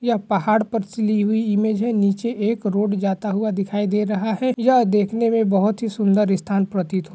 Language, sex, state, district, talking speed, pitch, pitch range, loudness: Hindi, male, Bihar, Gaya, 210 wpm, 210 Hz, 200-225 Hz, -20 LUFS